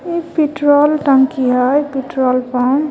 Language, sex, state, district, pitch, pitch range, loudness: Magahi, female, Jharkhand, Palamu, 280 Hz, 255-300 Hz, -14 LUFS